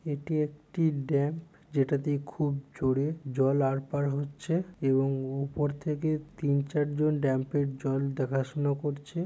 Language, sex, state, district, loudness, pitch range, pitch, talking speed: Bengali, male, West Bengal, Purulia, -30 LUFS, 135-150 Hz, 145 Hz, 130 wpm